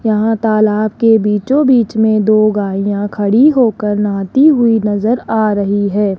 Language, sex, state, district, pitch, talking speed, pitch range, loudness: Hindi, male, Rajasthan, Jaipur, 215 Hz, 155 wpm, 205-225 Hz, -12 LUFS